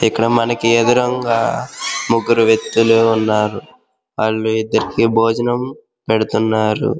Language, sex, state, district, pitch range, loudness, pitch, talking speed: Telugu, male, Andhra Pradesh, Krishna, 110-115 Hz, -16 LUFS, 115 Hz, 85 wpm